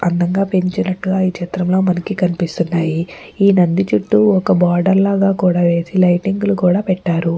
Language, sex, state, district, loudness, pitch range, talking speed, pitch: Telugu, female, Andhra Pradesh, Chittoor, -15 LUFS, 175-195 Hz, 140 wpm, 185 Hz